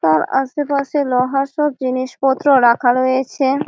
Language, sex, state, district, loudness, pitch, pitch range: Bengali, female, West Bengal, Malda, -16 LUFS, 265 Hz, 255-280 Hz